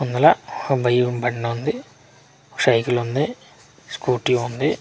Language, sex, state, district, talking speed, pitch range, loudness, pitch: Telugu, male, Andhra Pradesh, Manyam, 75 wpm, 120-140 Hz, -21 LUFS, 125 Hz